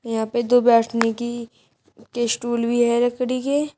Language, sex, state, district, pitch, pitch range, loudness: Hindi, female, Uttar Pradesh, Shamli, 240 Hz, 230-245 Hz, -20 LUFS